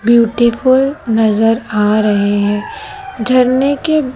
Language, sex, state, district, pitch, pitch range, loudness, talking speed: Hindi, female, Madhya Pradesh, Dhar, 235 Hz, 215-270 Hz, -13 LUFS, 100 wpm